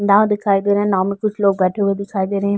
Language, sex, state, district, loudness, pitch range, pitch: Hindi, female, Uttar Pradesh, Varanasi, -17 LUFS, 195-205 Hz, 200 Hz